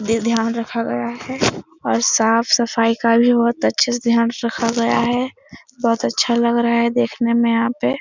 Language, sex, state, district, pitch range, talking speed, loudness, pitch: Hindi, female, Bihar, Supaul, 230-235 Hz, 195 wpm, -18 LUFS, 235 Hz